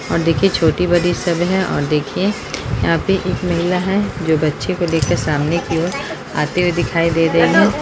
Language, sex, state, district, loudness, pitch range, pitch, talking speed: Hindi, male, Bihar, Jahanabad, -17 LUFS, 165-180 Hz, 170 Hz, 190 wpm